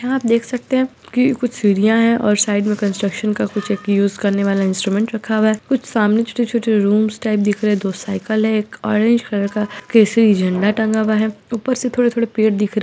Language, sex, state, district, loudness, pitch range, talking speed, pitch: Hindi, female, Bihar, Muzaffarpur, -17 LUFS, 205-230 Hz, 235 wpm, 215 Hz